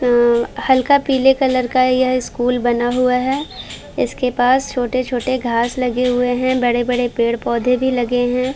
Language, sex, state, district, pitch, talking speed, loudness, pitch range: Hindi, female, Uttar Pradesh, Varanasi, 250 Hz, 155 wpm, -17 LUFS, 245-255 Hz